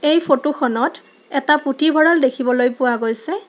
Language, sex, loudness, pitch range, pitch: Assamese, female, -17 LUFS, 255-310 Hz, 275 Hz